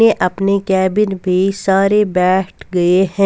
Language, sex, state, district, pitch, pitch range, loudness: Hindi, female, Punjab, Kapurthala, 190 Hz, 185-200 Hz, -15 LUFS